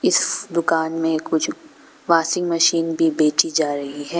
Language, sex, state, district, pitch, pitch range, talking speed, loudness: Hindi, female, Arunachal Pradesh, Papum Pare, 165 Hz, 160-170 Hz, 145 wpm, -19 LUFS